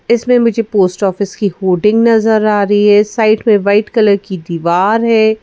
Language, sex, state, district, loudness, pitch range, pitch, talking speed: Hindi, female, Madhya Pradesh, Bhopal, -12 LUFS, 200-225 Hz, 210 Hz, 190 wpm